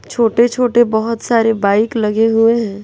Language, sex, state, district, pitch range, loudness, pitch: Hindi, female, Bihar, West Champaran, 220-235 Hz, -14 LUFS, 225 Hz